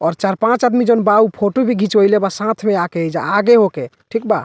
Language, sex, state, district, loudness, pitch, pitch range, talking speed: Bhojpuri, male, Bihar, Muzaffarpur, -15 LUFS, 210 Hz, 200-225 Hz, 255 wpm